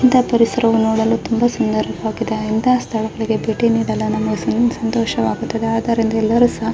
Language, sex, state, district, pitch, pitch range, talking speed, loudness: Kannada, female, Karnataka, Raichur, 225 Hz, 220-235 Hz, 150 wpm, -17 LUFS